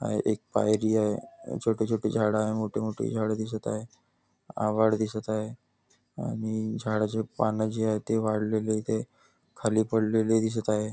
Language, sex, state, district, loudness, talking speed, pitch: Marathi, male, Maharashtra, Nagpur, -28 LUFS, 155 wpm, 110 Hz